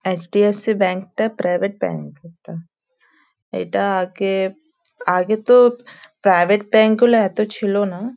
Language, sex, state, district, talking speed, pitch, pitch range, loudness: Bengali, female, West Bengal, Dakshin Dinajpur, 115 wpm, 205 Hz, 185-220 Hz, -18 LUFS